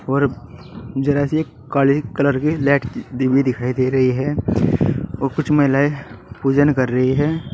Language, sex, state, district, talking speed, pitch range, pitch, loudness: Hindi, male, Uttar Pradesh, Saharanpur, 150 wpm, 125-145 Hz, 135 Hz, -18 LUFS